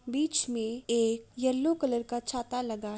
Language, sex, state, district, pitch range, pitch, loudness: Hindi, female, Uttar Pradesh, Jalaun, 230-260 Hz, 240 Hz, -30 LUFS